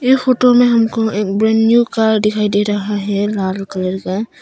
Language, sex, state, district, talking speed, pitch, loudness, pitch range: Hindi, female, Arunachal Pradesh, Longding, 205 wpm, 210 Hz, -15 LUFS, 205-230 Hz